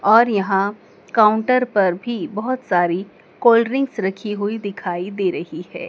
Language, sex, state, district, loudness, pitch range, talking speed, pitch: Hindi, female, Madhya Pradesh, Dhar, -19 LUFS, 195-235 Hz, 155 wpm, 210 Hz